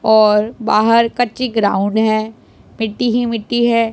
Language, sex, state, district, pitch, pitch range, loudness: Hindi, female, Punjab, Pathankot, 225 Hz, 215-235 Hz, -15 LUFS